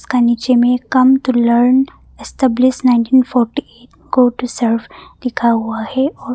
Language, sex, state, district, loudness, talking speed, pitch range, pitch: Hindi, female, Arunachal Pradesh, Papum Pare, -14 LUFS, 130 wpm, 235-260 Hz, 250 Hz